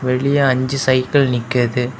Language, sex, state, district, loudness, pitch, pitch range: Tamil, male, Tamil Nadu, Kanyakumari, -16 LUFS, 130 Hz, 125-135 Hz